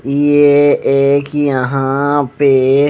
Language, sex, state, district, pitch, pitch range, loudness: Hindi, male, Punjab, Fazilka, 140 Hz, 135-145 Hz, -12 LUFS